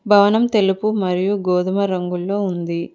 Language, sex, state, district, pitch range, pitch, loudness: Telugu, female, Telangana, Hyderabad, 180-205 Hz, 195 Hz, -18 LUFS